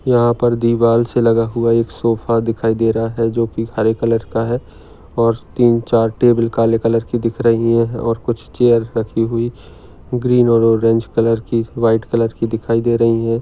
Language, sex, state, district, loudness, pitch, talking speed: Hindi, male, Maharashtra, Dhule, -16 LUFS, 115 Hz, 190 wpm